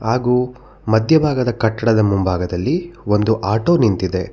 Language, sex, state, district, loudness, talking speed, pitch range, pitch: Kannada, male, Karnataka, Bangalore, -17 LUFS, 110 wpm, 105-125 Hz, 110 Hz